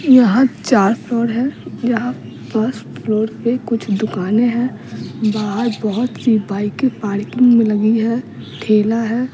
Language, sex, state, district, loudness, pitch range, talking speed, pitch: Hindi, female, Bihar, Patna, -17 LUFS, 215-245 Hz, 135 wpm, 230 Hz